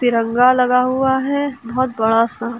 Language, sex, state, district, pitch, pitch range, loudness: Hindi, female, Uttar Pradesh, Lucknow, 250 Hz, 235-260 Hz, -16 LUFS